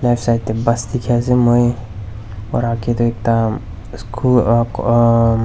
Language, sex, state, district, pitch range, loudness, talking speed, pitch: Nagamese, male, Nagaland, Dimapur, 110-120 Hz, -16 LUFS, 155 wpm, 115 Hz